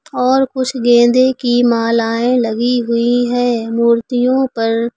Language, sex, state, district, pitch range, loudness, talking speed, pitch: Hindi, female, Uttar Pradesh, Lucknow, 235-250 Hz, -14 LUFS, 120 wpm, 240 Hz